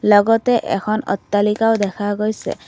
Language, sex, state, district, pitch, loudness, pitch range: Assamese, female, Assam, Kamrup Metropolitan, 210 Hz, -18 LUFS, 205-225 Hz